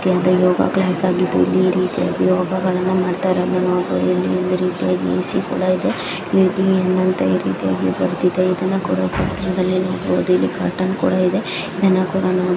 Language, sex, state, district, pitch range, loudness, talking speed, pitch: Kannada, female, Karnataka, Chamarajanagar, 180-185 Hz, -18 LUFS, 175 wpm, 185 Hz